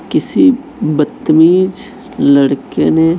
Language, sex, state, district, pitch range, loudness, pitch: Hindi, female, Chhattisgarh, Raipur, 150-185 Hz, -12 LUFS, 160 Hz